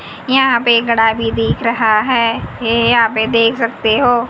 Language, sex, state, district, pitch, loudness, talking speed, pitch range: Hindi, female, Haryana, Jhajjar, 230 Hz, -13 LUFS, 210 wpm, 225-235 Hz